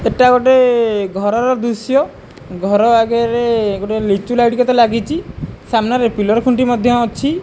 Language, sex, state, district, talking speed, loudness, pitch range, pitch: Odia, male, Odisha, Khordha, 130 wpm, -14 LUFS, 210-250 Hz, 235 Hz